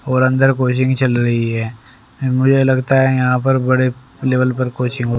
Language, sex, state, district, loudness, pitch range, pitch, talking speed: Hindi, male, Haryana, Rohtak, -16 LUFS, 125-130 Hz, 130 Hz, 185 wpm